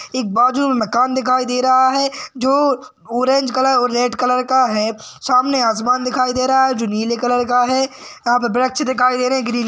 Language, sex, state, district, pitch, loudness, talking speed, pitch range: Hindi, male, Maharashtra, Sindhudurg, 255 Hz, -16 LUFS, 210 wpm, 245-260 Hz